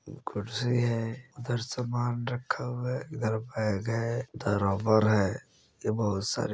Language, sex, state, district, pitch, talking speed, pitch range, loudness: Bajjika, male, Bihar, Vaishali, 115 Hz, 155 wpm, 110-125 Hz, -30 LUFS